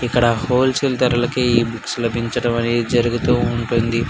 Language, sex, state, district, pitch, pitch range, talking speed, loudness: Telugu, male, Andhra Pradesh, Anantapur, 120 Hz, 115-120 Hz, 130 wpm, -18 LUFS